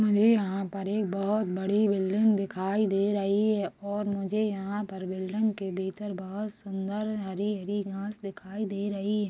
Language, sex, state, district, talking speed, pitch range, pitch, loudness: Hindi, female, Chhattisgarh, Rajnandgaon, 170 wpm, 195-210 Hz, 200 Hz, -29 LUFS